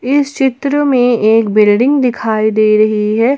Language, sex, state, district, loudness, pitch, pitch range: Hindi, female, Jharkhand, Palamu, -12 LUFS, 235 Hz, 215-270 Hz